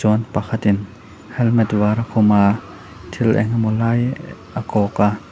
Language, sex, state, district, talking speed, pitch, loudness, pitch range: Mizo, male, Mizoram, Aizawl, 145 wpm, 105 Hz, -18 LUFS, 105-115 Hz